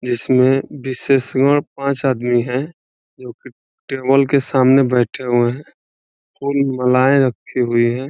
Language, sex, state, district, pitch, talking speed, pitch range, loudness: Hindi, male, Bihar, Saran, 130 Hz, 125 wpm, 120-135 Hz, -16 LUFS